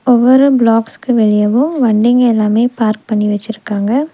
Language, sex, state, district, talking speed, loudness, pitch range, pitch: Tamil, female, Tamil Nadu, Nilgiris, 115 wpm, -12 LUFS, 215-250 Hz, 230 Hz